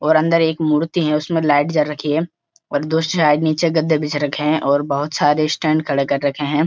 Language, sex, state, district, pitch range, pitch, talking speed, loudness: Hindi, male, Uttarakhand, Uttarkashi, 145-160 Hz, 150 Hz, 225 wpm, -18 LUFS